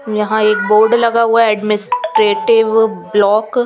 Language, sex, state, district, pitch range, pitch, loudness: Hindi, female, Chandigarh, Chandigarh, 210-245 Hz, 225 Hz, -13 LUFS